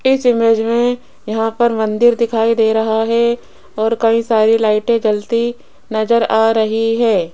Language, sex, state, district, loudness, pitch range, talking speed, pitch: Hindi, female, Rajasthan, Jaipur, -15 LUFS, 220-235 Hz, 155 wpm, 225 Hz